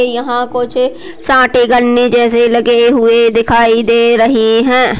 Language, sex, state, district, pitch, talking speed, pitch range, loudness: Hindi, female, Uttar Pradesh, Gorakhpur, 240 Hz, 145 wpm, 235-245 Hz, -10 LUFS